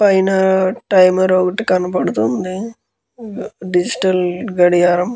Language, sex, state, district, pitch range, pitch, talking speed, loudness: Telugu, male, Andhra Pradesh, Guntur, 180-195 Hz, 185 Hz, 70 wpm, -15 LUFS